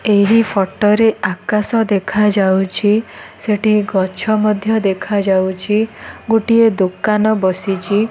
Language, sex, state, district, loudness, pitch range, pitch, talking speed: Odia, female, Odisha, Nuapada, -15 LUFS, 195-215 Hz, 210 Hz, 110 wpm